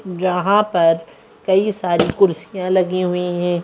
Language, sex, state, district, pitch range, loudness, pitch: Hindi, female, Madhya Pradesh, Bhopal, 175-190 Hz, -18 LUFS, 180 Hz